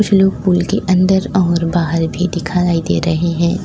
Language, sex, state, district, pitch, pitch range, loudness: Hindi, female, Uttar Pradesh, Lalitpur, 180 Hz, 170-190 Hz, -15 LUFS